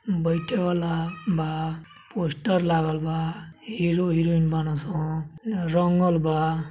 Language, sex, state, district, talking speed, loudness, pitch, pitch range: Bhojpuri, male, Uttar Pradesh, Gorakhpur, 90 wpm, -25 LUFS, 165 Hz, 160-175 Hz